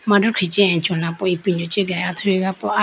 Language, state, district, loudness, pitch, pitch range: Idu Mishmi, Arunachal Pradesh, Lower Dibang Valley, -19 LUFS, 185 Hz, 175-200 Hz